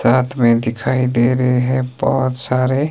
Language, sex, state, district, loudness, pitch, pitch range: Hindi, male, Himachal Pradesh, Shimla, -16 LUFS, 130 Hz, 125-130 Hz